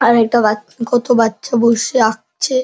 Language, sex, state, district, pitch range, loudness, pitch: Bengali, male, West Bengal, Dakshin Dinajpur, 225-245 Hz, -15 LUFS, 235 Hz